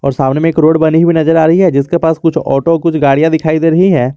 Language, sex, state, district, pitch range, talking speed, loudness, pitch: Hindi, male, Jharkhand, Garhwa, 145-165 Hz, 300 wpm, -10 LUFS, 160 Hz